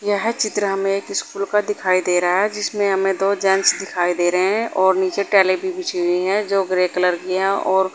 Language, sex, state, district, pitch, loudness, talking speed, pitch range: Hindi, female, Uttar Pradesh, Saharanpur, 195 Hz, -19 LUFS, 235 wpm, 185-200 Hz